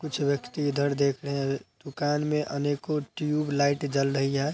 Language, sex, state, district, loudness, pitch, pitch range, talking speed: Hindi, male, Bihar, Araria, -28 LUFS, 145 Hz, 140-150 Hz, 170 wpm